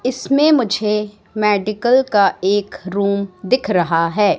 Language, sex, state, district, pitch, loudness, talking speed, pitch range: Hindi, female, Madhya Pradesh, Katni, 210 Hz, -17 LUFS, 125 wpm, 200-245 Hz